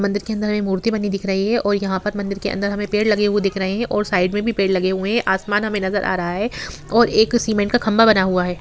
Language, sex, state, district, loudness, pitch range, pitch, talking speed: Hindi, female, Bihar, Sitamarhi, -19 LUFS, 195-215 Hz, 205 Hz, 300 wpm